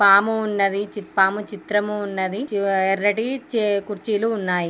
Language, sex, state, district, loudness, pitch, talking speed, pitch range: Telugu, female, Andhra Pradesh, Srikakulam, -21 LUFS, 205 Hz, 140 wpm, 195-210 Hz